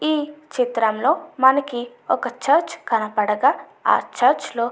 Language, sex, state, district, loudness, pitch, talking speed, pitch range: Telugu, female, Andhra Pradesh, Anantapur, -20 LUFS, 250 Hz, 125 wpm, 230-295 Hz